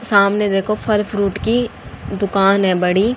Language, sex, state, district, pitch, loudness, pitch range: Hindi, female, Haryana, Jhajjar, 200 Hz, -17 LUFS, 195-215 Hz